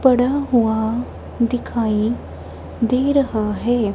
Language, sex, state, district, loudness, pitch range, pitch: Hindi, male, Punjab, Kapurthala, -19 LUFS, 220-250 Hz, 240 Hz